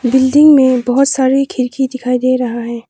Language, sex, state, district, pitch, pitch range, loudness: Hindi, female, Arunachal Pradesh, Papum Pare, 255 Hz, 250-265 Hz, -12 LUFS